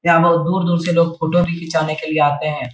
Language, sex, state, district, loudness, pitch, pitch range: Hindi, male, Bihar, Jahanabad, -17 LUFS, 165 Hz, 155-170 Hz